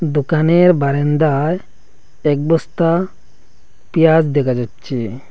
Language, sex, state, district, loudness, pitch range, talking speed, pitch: Bengali, male, Assam, Hailakandi, -16 LUFS, 140-165 Hz, 80 wpm, 155 Hz